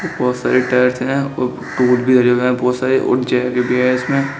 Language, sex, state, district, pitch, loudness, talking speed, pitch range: Hindi, male, Uttar Pradesh, Shamli, 125 Hz, -16 LUFS, 135 wpm, 125-130 Hz